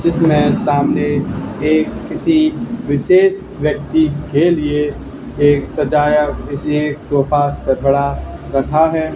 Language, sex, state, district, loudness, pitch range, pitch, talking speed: Hindi, male, Haryana, Charkhi Dadri, -15 LUFS, 145-160 Hz, 150 Hz, 105 wpm